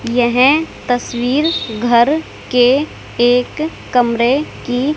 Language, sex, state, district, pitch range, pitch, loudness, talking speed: Hindi, female, Haryana, Charkhi Dadri, 240-290 Hz, 250 Hz, -15 LUFS, 85 wpm